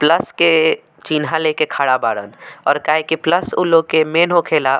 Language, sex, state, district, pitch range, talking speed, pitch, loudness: Bhojpuri, male, Bihar, Muzaffarpur, 150-165 Hz, 175 wpm, 160 Hz, -16 LUFS